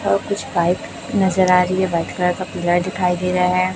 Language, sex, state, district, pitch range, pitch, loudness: Hindi, male, Chhattisgarh, Raipur, 180-185 Hz, 180 Hz, -19 LUFS